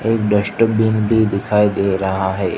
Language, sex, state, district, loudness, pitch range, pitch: Hindi, male, Gujarat, Gandhinagar, -16 LUFS, 100-110 Hz, 105 Hz